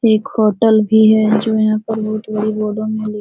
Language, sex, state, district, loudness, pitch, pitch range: Hindi, female, Bihar, Supaul, -15 LUFS, 215 Hz, 215-220 Hz